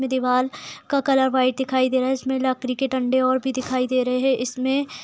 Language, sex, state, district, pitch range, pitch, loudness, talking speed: Hindi, female, Bihar, Purnia, 255-265 Hz, 260 Hz, -22 LUFS, 260 wpm